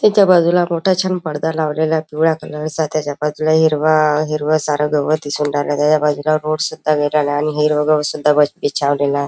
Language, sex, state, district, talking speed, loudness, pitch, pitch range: Marathi, male, Maharashtra, Chandrapur, 170 wpm, -16 LUFS, 155 Hz, 150-155 Hz